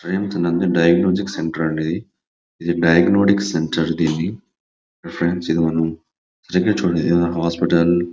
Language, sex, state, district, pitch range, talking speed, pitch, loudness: Telugu, male, Andhra Pradesh, Visakhapatnam, 80-85 Hz, 90 wpm, 85 Hz, -18 LUFS